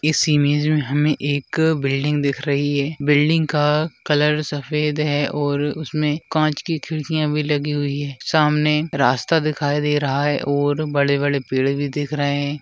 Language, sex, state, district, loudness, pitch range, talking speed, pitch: Hindi, male, Bihar, Madhepura, -20 LUFS, 145-150 Hz, 170 wpm, 150 Hz